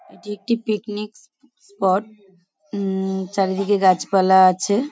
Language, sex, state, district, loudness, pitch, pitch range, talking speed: Bengali, female, West Bengal, Paschim Medinipur, -19 LUFS, 200 Hz, 190-215 Hz, 120 wpm